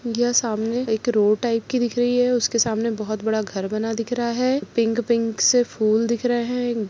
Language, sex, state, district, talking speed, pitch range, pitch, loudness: Hindi, female, Chhattisgarh, Kabirdham, 215 wpm, 220-245 Hz, 230 Hz, -21 LUFS